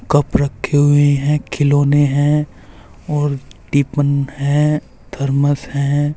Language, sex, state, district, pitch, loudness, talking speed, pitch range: Hindi, male, Uttar Pradesh, Saharanpur, 145 Hz, -16 LUFS, 105 wpm, 140-145 Hz